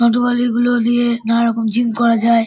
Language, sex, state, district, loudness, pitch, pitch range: Bengali, male, West Bengal, Dakshin Dinajpur, -15 LUFS, 235 Hz, 230-240 Hz